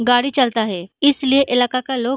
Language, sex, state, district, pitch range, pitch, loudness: Hindi, female, Uttar Pradesh, Gorakhpur, 245-270 Hz, 255 Hz, -17 LUFS